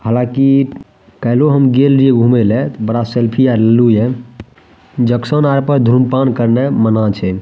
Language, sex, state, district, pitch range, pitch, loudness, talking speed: Maithili, male, Bihar, Madhepura, 115-135 Hz, 120 Hz, -12 LUFS, 160 wpm